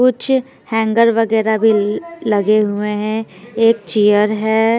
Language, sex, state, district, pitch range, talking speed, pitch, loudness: Hindi, female, Bihar, Patna, 210-230 Hz, 125 wpm, 220 Hz, -15 LUFS